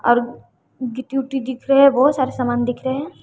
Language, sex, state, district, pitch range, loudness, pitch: Hindi, female, Bihar, West Champaran, 245-270 Hz, -18 LUFS, 260 Hz